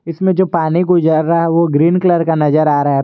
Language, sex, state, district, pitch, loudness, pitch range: Hindi, male, Jharkhand, Garhwa, 165 Hz, -13 LUFS, 155-175 Hz